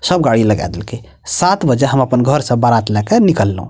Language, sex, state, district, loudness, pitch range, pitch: Maithili, male, Bihar, Purnia, -13 LUFS, 105-145 Hz, 120 Hz